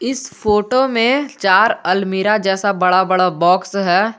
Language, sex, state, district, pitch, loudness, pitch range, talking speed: Hindi, male, Jharkhand, Garhwa, 195 Hz, -15 LUFS, 185-230 Hz, 145 wpm